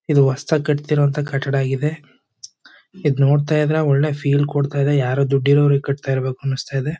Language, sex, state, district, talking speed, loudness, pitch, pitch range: Kannada, male, Karnataka, Chamarajanagar, 155 wpm, -18 LUFS, 140 Hz, 135-150 Hz